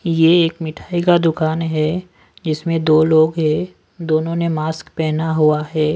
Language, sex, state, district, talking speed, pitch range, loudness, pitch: Hindi, male, Delhi, New Delhi, 160 wpm, 155-165 Hz, -17 LUFS, 160 Hz